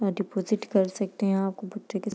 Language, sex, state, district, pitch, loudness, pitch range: Hindi, female, Bihar, East Champaran, 200 Hz, -28 LUFS, 195-210 Hz